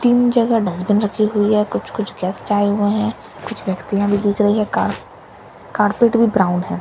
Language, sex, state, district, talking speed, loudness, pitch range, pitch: Hindi, female, Bihar, Katihar, 205 wpm, -17 LUFS, 205-220 Hz, 210 Hz